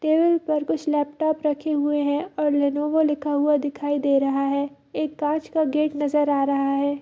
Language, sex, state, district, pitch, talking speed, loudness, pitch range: Hindi, female, Bihar, Bhagalpur, 295 Hz, 195 wpm, -23 LUFS, 285-305 Hz